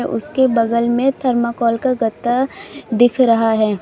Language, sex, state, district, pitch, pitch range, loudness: Hindi, female, Uttar Pradesh, Lalitpur, 235 Hz, 230-255 Hz, -16 LUFS